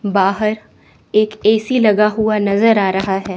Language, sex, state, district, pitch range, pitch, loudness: Hindi, female, Chandigarh, Chandigarh, 195-215 Hz, 210 Hz, -15 LUFS